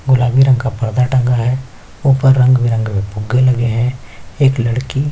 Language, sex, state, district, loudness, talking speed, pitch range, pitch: Hindi, male, Chhattisgarh, Kabirdham, -14 LUFS, 185 wpm, 120-130 Hz, 125 Hz